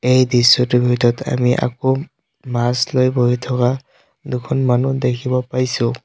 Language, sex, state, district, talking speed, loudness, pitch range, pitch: Assamese, male, Assam, Sonitpur, 130 wpm, -17 LUFS, 125-130 Hz, 125 Hz